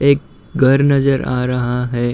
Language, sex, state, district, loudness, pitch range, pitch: Hindi, male, Uttar Pradesh, Budaun, -16 LUFS, 125-140 Hz, 130 Hz